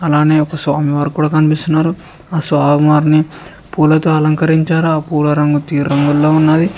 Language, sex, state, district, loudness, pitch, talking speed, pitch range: Telugu, male, Telangana, Mahabubabad, -13 LUFS, 155 Hz, 135 wpm, 150-160 Hz